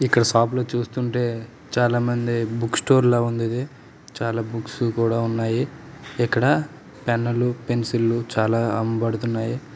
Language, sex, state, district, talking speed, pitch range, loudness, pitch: Telugu, male, Telangana, Nalgonda, 135 wpm, 115-125 Hz, -22 LUFS, 120 Hz